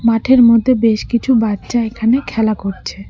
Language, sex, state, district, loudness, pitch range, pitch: Bengali, female, West Bengal, Cooch Behar, -14 LUFS, 215-240 Hz, 225 Hz